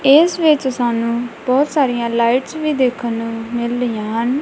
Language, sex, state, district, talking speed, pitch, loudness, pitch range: Punjabi, female, Punjab, Kapurthala, 165 wpm, 245 Hz, -17 LUFS, 235-275 Hz